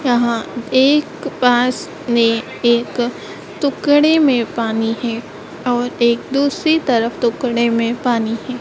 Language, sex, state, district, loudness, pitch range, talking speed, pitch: Hindi, female, Madhya Pradesh, Dhar, -16 LUFS, 235-270 Hz, 120 wpm, 245 Hz